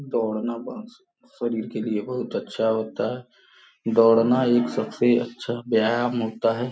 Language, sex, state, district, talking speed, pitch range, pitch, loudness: Hindi, male, Uttar Pradesh, Gorakhpur, 135 wpm, 115-125 Hz, 120 Hz, -23 LUFS